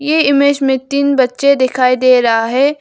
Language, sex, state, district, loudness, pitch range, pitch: Hindi, female, Arunachal Pradesh, Lower Dibang Valley, -12 LUFS, 255-280 Hz, 270 Hz